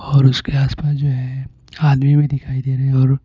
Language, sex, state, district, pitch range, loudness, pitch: Hindi, male, Punjab, Pathankot, 130-140 Hz, -17 LUFS, 135 Hz